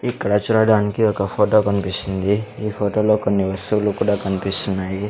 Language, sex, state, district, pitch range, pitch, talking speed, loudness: Telugu, male, Andhra Pradesh, Sri Satya Sai, 100-105 Hz, 105 Hz, 130 wpm, -19 LUFS